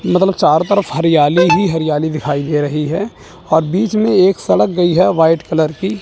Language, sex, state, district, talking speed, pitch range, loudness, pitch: Hindi, male, Chandigarh, Chandigarh, 200 wpm, 155-190 Hz, -14 LUFS, 165 Hz